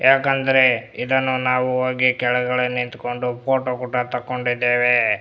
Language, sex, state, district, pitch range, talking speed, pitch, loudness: Kannada, male, Karnataka, Bellary, 125-130 Hz, 115 wpm, 125 Hz, -19 LUFS